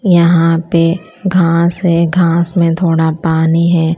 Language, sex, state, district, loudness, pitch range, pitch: Hindi, female, Punjab, Kapurthala, -12 LUFS, 165-175 Hz, 170 Hz